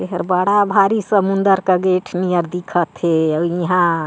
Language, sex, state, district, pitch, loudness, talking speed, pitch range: Chhattisgarhi, female, Chhattisgarh, Sarguja, 180 Hz, -16 LUFS, 175 wpm, 170-195 Hz